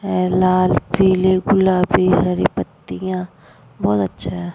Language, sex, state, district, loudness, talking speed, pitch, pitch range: Hindi, female, Bihar, Vaishali, -17 LUFS, 120 wpm, 180 Hz, 130-185 Hz